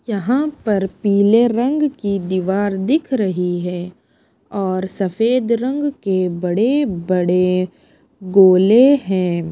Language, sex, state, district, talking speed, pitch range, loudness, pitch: Hindi, female, Punjab, Pathankot, 100 wpm, 185-240 Hz, -17 LUFS, 200 Hz